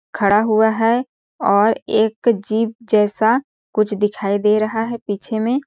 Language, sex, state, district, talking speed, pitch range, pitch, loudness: Hindi, female, Chhattisgarh, Sarguja, 150 wpm, 210-230 Hz, 220 Hz, -18 LUFS